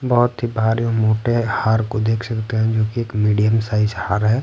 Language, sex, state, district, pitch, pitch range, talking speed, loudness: Hindi, male, Bihar, Patna, 110 Hz, 110-115 Hz, 215 wpm, -19 LUFS